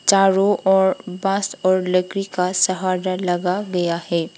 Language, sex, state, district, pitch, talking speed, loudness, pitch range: Hindi, female, Sikkim, Gangtok, 185 Hz, 125 wpm, -19 LUFS, 180-195 Hz